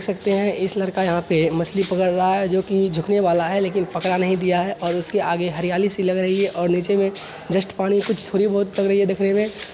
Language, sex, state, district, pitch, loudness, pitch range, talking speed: Hindi, male, Bihar, Araria, 190 Hz, -20 LUFS, 180-200 Hz, 240 wpm